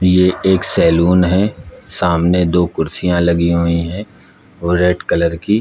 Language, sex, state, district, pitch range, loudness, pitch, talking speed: Hindi, male, Uttar Pradesh, Lucknow, 85-90 Hz, -15 LUFS, 90 Hz, 150 wpm